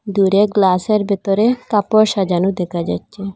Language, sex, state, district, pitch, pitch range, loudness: Bengali, female, Assam, Hailakandi, 200 Hz, 185-215 Hz, -16 LUFS